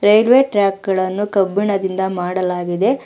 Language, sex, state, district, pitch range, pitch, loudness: Kannada, female, Karnataka, Bangalore, 185-205 Hz, 195 Hz, -17 LUFS